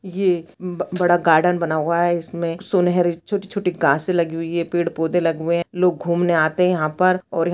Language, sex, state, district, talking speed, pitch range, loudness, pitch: Hindi, female, Chhattisgarh, Bastar, 190 wpm, 165-180 Hz, -20 LUFS, 175 Hz